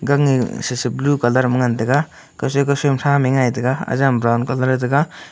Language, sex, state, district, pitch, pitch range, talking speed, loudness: Wancho, male, Arunachal Pradesh, Longding, 130 Hz, 125-140 Hz, 205 wpm, -18 LUFS